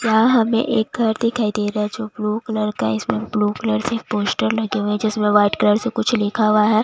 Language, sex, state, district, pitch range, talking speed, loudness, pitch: Hindi, female, Bihar, West Champaran, 210-225 Hz, 255 wpm, -19 LUFS, 215 Hz